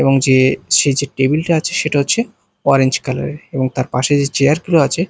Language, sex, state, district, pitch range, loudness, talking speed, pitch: Bengali, male, Bihar, Katihar, 135-160 Hz, -15 LUFS, 225 wpm, 140 Hz